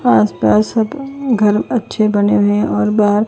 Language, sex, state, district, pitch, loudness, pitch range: Hindi, female, Chandigarh, Chandigarh, 210 Hz, -14 LUFS, 205-240 Hz